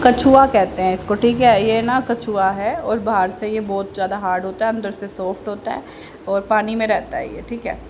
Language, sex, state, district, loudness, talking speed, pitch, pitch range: Hindi, female, Haryana, Rohtak, -18 LUFS, 245 wpm, 210 Hz, 195-225 Hz